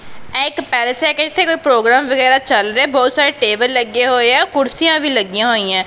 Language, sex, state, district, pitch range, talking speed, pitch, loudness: Punjabi, female, Punjab, Pathankot, 245-290 Hz, 195 wpm, 260 Hz, -13 LUFS